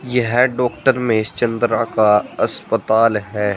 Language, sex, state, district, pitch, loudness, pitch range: Hindi, male, Uttar Pradesh, Saharanpur, 115 Hz, -17 LUFS, 105-125 Hz